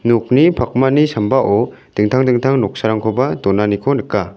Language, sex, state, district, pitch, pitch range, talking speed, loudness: Garo, male, Meghalaya, South Garo Hills, 120 Hz, 105-135 Hz, 110 wpm, -15 LUFS